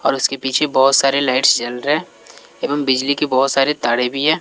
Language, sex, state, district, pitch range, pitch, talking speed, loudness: Hindi, male, Bihar, West Champaran, 130-145 Hz, 135 Hz, 230 wpm, -16 LUFS